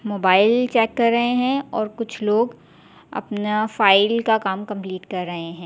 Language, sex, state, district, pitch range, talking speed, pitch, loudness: Hindi, female, Delhi, New Delhi, 195-235 Hz, 170 wpm, 215 Hz, -20 LUFS